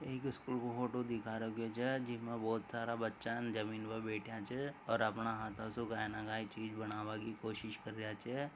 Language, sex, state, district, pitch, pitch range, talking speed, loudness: Marwari, male, Rajasthan, Nagaur, 115 Hz, 110-120 Hz, 210 wpm, -42 LUFS